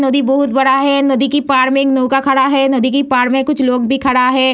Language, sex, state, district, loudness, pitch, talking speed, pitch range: Hindi, female, Bihar, Samastipur, -13 LUFS, 270 Hz, 275 wpm, 260-275 Hz